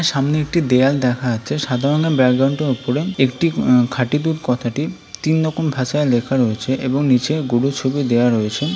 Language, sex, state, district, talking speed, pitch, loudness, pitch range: Bengali, male, West Bengal, Kolkata, 155 wpm, 135 Hz, -18 LUFS, 125-150 Hz